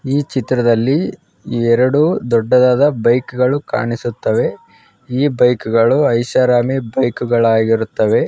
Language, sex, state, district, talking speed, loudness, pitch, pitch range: Kannada, male, Karnataka, Gulbarga, 100 wpm, -15 LUFS, 125 Hz, 115-130 Hz